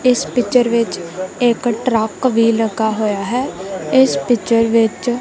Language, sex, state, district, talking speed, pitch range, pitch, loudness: Punjabi, female, Punjab, Kapurthala, 140 wpm, 215-245 Hz, 230 Hz, -16 LUFS